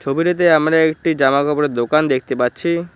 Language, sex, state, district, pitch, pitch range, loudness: Bengali, male, West Bengal, Cooch Behar, 155 Hz, 135-165 Hz, -16 LUFS